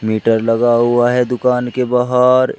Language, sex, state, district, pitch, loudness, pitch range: Hindi, male, Uttar Pradesh, Shamli, 125 Hz, -14 LUFS, 115-125 Hz